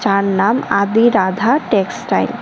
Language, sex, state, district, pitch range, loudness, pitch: Bengali, male, Tripura, West Tripura, 195-235 Hz, -15 LUFS, 200 Hz